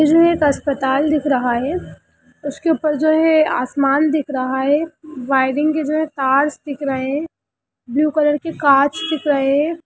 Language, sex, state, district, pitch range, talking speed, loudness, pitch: Hindi, male, Bihar, Darbhanga, 275-310 Hz, 200 wpm, -17 LUFS, 295 Hz